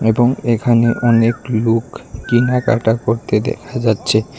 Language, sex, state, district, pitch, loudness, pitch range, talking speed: Bengali, male, Tripura, West Tripura, 115 Hz, -16 LUFS, 115-120 Hz, 110 wpm